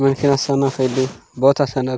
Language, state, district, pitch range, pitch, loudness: Gondi, Chhattisgarh, Sukma, 130-140 Hz, 135 Hz, -18 LUFS